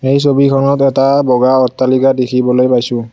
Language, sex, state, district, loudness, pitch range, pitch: Assamese, male, Assam, Kamrup Metropolitan, -11 LUFS, 125-135 Hz, 130 Hz